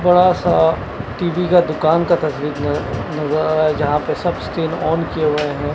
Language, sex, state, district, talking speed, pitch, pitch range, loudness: Hindi, male, Punjab, Kapurthala, 220 wpm, 155 Hz, 145-170 Hz, -17 LUFS